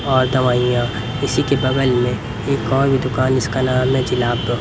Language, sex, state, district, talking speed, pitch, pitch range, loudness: Hindi, male, Haryana, Rohtak, 180 wpm, 130 Hz, 120-130 Hz, -18 LUFS